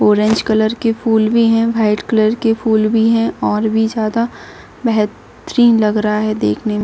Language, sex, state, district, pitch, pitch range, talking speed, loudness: Hindi, female, Jharkhand, Jamtara, 220 Hz, 215-230 Hz, 185 wpm, -15 LUFS